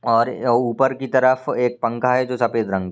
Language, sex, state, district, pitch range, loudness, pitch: Hindi, male, Maharashtra, Nagpur, 115-130 Hz, -19 LUFS, 125 Hz